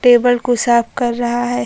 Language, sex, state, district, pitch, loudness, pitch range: Hindi, female, Bihar, Kaimur, 240 Hz, -15 LUFS, 240-245 Hz